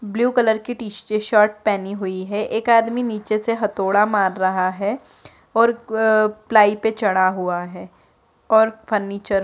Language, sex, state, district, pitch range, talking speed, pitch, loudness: Hindi, female, Bihar, Muzaffarpur, 200-220 Hz, 155 wpm, 215 Hz, -19 LUFS